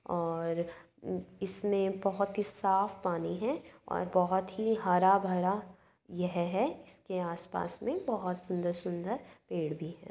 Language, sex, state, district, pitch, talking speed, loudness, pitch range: Hindi, female, Uttar Pradesh, Budaun, 185 Hz, 130 wpm, -33 LUFS, 175-200 Hz